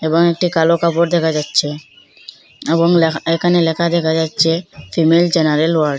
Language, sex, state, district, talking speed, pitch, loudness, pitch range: Bengali, female, Assam, Hailakandi, 150 wpm, 165 Hz, -15 LUFS, 160-170 Hz